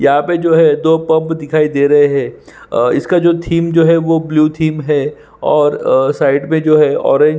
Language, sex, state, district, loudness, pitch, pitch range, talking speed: Hindi, male, Chhattisgarh, Sukma, -12 LUFS, 155 Hz, 150-165 Hz, 220 wpm